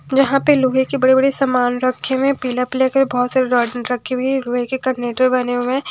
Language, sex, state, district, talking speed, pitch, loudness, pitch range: Hindi, female, Haryana, Jhajjar, 255 wpm, 260 Hz, -17 LUFS, 250-265 Hz